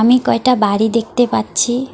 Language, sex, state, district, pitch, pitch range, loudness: Bengali, female, West Bengal, Alipurduar, 240 Hz, 225-250 Hz, -15 LUFS